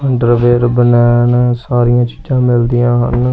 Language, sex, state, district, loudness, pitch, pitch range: Punjabi, male, Punjab, Kapurthala, -11 LUFS, 120 Hz, 120-125 Hz